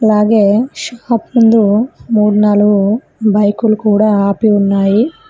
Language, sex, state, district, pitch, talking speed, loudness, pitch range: Telugu, female, Telangana, Mahabubabad, 215 Hz, 100 wpm, -12 LUFS, 205-225 Hz